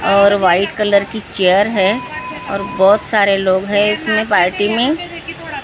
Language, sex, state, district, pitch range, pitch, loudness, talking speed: Hindi, female, Maharashtra, Gondia, 195-210 Hz, 200 Hz, -14 LUFS, 160 wpm